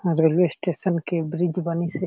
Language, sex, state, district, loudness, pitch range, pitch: Chhattisgarhi, male, Chhattisgarh, Sarguja, -22 LUFS, 165-180 Hz, 170 Hz